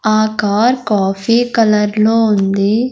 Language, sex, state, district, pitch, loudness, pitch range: Telugu, male, Andhra Pradesh, Sri Satya Sai, 215 Hz, -13 LUFS, 205-230 Hz